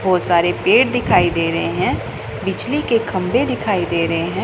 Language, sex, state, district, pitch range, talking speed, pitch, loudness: Hindi, female, Punjab, Pathankot, 170-230 Hz, 190 wpm, 180 Hz, -17 LUFS